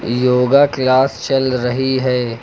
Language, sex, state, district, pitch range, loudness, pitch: Hindi, male, Uttar Pradesh, Lucknow, 125-130 Hz, -15 LUFS, 130 Hz